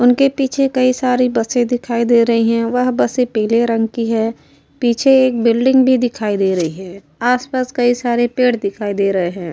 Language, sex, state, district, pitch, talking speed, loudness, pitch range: Hindi, female, Uttar Pradesh, Hamirpur, 235 Hz, 195 wpm, -15 LUFS, 220-250 Hz